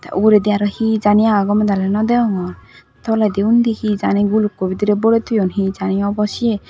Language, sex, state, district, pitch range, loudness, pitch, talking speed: Chakma, female, Tripura, Dhalai, 200-220 Hz, -16 LUFS, 210 Hz, 180 wpm